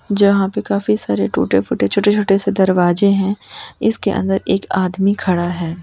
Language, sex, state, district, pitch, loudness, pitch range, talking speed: Hindi, female, Chhattisgarh, Raipur, 190 Hz, -16 LUFS, 170-200 Hz, 175 wpm